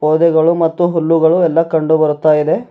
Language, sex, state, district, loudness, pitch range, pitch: Kannada, male, Karnataka, Bidar, -13 LUFS, 155-170 Hz, 165 Hz